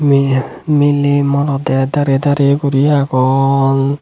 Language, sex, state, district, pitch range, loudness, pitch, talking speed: Chakma, male, Tripura, Unakoti, 135-145 Hz, -13 LUFS, 140 Hz, 105 wpm